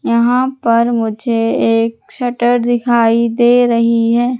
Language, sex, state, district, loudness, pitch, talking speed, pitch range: Hindi, female, Madhya Pradesh, Katni, -13 LUFS, 235 Hz, 120 wpm, 230-245 Hz